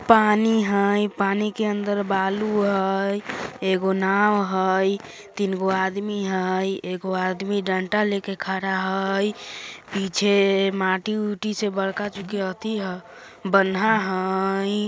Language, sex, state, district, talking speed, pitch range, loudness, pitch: Bajjika, female, Bihar, Vaishali, 120 wpm, 190-205 Hz, -23 LUFS, 195 Hz